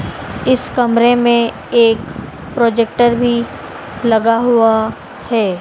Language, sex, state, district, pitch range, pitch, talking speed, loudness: Hindi, female, Madhya Pradesh, Dhar, 225-240 Hz, 235 Hz, 95 wpm, -14 LUFS